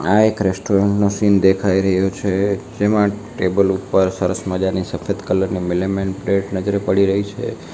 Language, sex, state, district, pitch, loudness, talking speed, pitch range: Gujarati, male, Gujarat, Valsad, 95 Hz, -18 LUFS, 170 wpm, 95-100 Hz